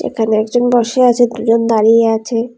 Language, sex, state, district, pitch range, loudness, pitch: Bengali, female, Tripura, West Tripura, 225-245 Hz, -13 LUFS, 230 Hz